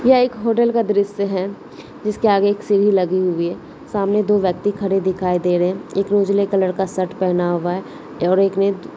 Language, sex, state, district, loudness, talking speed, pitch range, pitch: Hindi, female, Rajasthan, Nagaur, -18 LUFS, 225 wpm, 185-205 Hz, 195 Hz